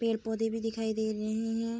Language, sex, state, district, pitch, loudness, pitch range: Hindi, female, Bihar, Bhagalpur, 225 Hz, -32 LUFS, 220-225 Hz